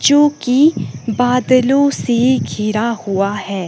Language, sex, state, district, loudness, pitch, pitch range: Hindi, female, Himachal Pradesh, Shimla, -15 LUFS, 245 Hz, 215-275 Hz